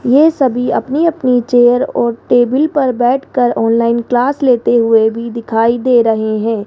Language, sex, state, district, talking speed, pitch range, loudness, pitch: Hindi, female, Rajasthan, Jaipur, 160 wpm, 230-260 Hz, -13 LUFS, 245 Hz